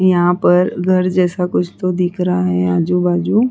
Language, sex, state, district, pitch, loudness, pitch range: Hindi, female, Uttar Pradesh, Hamirpur, 180 Hz, -15 LUFS, 175-185 Hz